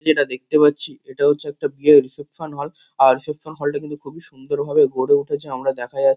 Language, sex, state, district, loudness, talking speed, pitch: Bengali, male, West Bengal, Kolkata, -19 LUFS, 235 wpm, 150 Hz